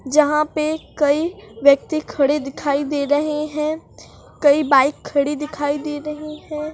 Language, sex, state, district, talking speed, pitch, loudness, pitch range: Hindi, female, Maharashtra, Solapur, 140 wpm, 300 Hz, -19 LUFS, 285-305 Hz